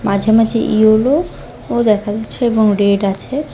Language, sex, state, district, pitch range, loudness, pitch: Bengali, female, West Bengal, Cooch Behar, 205-235 Hz, -14 LUFS, 220 Hz